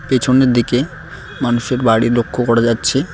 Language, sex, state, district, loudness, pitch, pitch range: Bengali, male, West Bengal, Cooch Behar, -15 LUFS, 125 Hz, 120-135 Hz